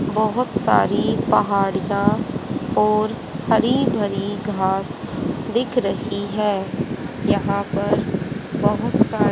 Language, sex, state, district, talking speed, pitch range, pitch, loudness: Hindi, female, Haryana, Jhajjar, 90 wpm, 200-220 Hz, 205 Hz, -21 LUFS